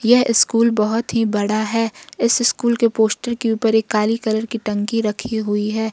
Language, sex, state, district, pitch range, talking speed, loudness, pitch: Hindi, female, Jharkhand, Ranchi, 215-235 Hz, 190 wpm, -18 LUFS, 225 Hz